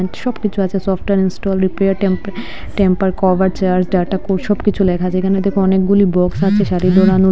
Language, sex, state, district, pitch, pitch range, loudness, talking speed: Bengali, female, Assam, Hailakandi, 190 Hz, 185-195 Hz, -15 LUFS, 155 wpm